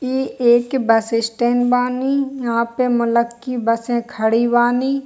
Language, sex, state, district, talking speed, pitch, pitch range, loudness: Hindi, female, Bihar, Kishanganj, 140 wpm, 240 Hz, 235-255 Hz, -18 LUFS